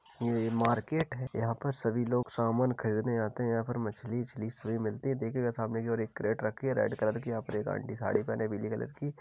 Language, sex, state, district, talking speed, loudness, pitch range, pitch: Hindi, male, Uttar Pradesh, Jalaun, 265 wpm, -33 LUFS, 110-125 Hz, 115 Hz